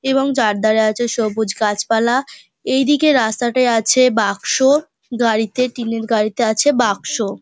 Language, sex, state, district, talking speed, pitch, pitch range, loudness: Bengali, female, West Bengal, Dakshin Dinajpur, 120 wpm, 235 Hz, 220-265 Hz, -16 LUFS